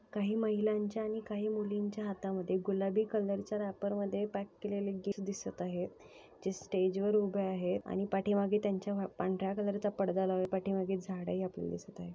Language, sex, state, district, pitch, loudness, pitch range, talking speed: Marathi, female, Maharashtra, Sindhudurg, 200 Hz, -36 LUFS, 190-210 Hz, 190 wpm